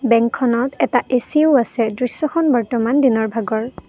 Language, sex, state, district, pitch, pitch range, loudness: Assamese, female, Assam, Kamrup Metropolitan, 245 Hz, 230-270 Hz, -17 LUFS